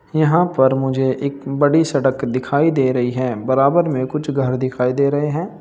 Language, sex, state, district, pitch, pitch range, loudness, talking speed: Hindi, male, Uttar Pradesh, Saharanpur, 135 Hz, 130-150 Hz, -18 LUFS, 190 wpm